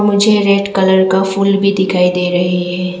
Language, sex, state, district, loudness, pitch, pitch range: Hindi, female, Arunachal Pradesh, Lower Dibang Valley, -13 LUFS, 190 Hz, 180-200 Hz